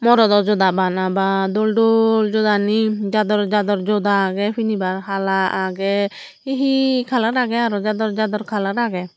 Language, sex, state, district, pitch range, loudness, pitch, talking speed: Chakma, female, Tripura, Dhalai, 195-225 Hz, -18 LUFS, 210 Hz, 150 wpm